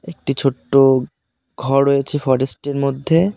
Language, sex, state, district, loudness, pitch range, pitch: Bengali, male, West Bengal, Cooch Behar, -17 LUFS, 135-140 Hz, 135 Hz